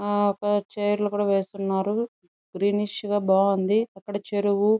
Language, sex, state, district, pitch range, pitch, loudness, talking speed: Telugu, female, Andhra Pradesh, Chittoor, 195-205 Hz, 205 Hz, -25 LUFS, 125 wpm